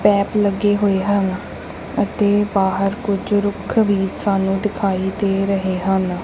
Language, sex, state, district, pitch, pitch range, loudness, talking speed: Punjabi, female, Punjab, Kapurthala, 200 Hz, 195-205 Hz, -19 LUFS, 135 wpm